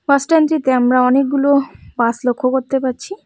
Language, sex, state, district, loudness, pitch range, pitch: Bengali, female, West Bengal, Cooch Behar, -15 LUFS, 255-280 Hz, 270 Hz